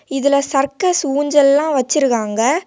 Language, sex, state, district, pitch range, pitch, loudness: Tamil, female, Tamil Nadu, Kanyakumari, 270-300 Hz, 280 Hz, -15 LUFS